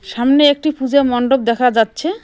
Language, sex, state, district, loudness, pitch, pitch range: Bengali, female, West Bengal, Cooch Behar, -14 LUFS, 270 Hz, 245-290 Hz